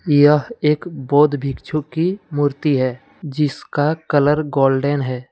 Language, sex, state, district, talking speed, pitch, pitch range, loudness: Hindi, male, Jharkhand, Deoghar, 125 wpm, 145 Hz, 135-150 Hz, -18 LUFS